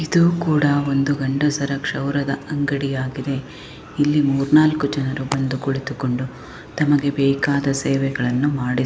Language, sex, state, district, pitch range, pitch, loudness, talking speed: Kannada, female, Karnataka, Chamarajanagar, 135-145 Hz, 140 Hz, -20 LUFS, 115 wpm